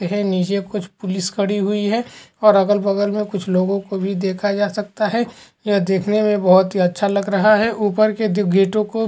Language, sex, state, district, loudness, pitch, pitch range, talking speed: Hindi, male, Uttar Pradesh, Hamirpur, -18 LUFS, 205 Hz, 195-210 Hz, 230 wpm